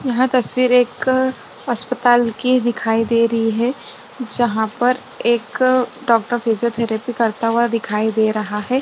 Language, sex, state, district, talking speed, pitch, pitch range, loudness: Hindi, female, Chhattisgarh, Rajnandgaon, 135 wpm, 240 Hz, 225-250 Hz, -17 LUFS